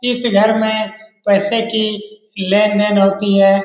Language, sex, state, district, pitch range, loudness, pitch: Hindi, male, Bihar, Lakhisarai, 200-220 Hz, -15 LUFS, 210 Hz